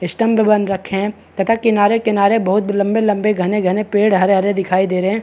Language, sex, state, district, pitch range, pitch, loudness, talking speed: Hindi, male, Chhattisgarh, Bastar, 195-215 Hz, 205 Hz, -16 LUFS, 240 wpm